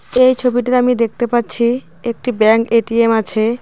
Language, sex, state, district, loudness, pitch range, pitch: Bengali, female, West Bengal, Cooch Behar, -14 LUFS, 225-250 Hz, 235 Hz